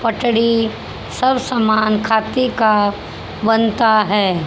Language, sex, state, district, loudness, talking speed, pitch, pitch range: Hindi, female, Haryana, Jhajjar, -16 LUFS, 95 wpm, 225 Hz, 215-230 Hz